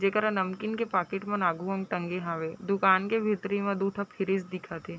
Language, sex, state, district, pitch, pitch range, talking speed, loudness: Chhattisgarhi, female, Chhattisgarh, Raigarh, 195 Hz, 185-200 Hz, 230 wpm, -29 LUFS